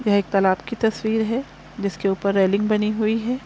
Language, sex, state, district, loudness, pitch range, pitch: Hindi, female, Chhattisgarh, Sukma, -21 LUFS, 200-225 Hz, 215 Hz